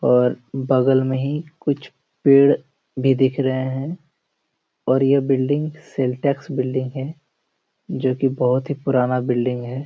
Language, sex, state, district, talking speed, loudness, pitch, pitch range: Hindi, male, Jharkhand, Jamtara, 140 wpm, -20 LUFS, 135 Hz, 130-140 Hz